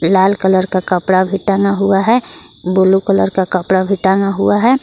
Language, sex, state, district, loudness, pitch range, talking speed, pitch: Hindi, female, Jharkhand, Garhwa, -13 LUFS, 185-200 Hz, 200 wpm, 190 Hz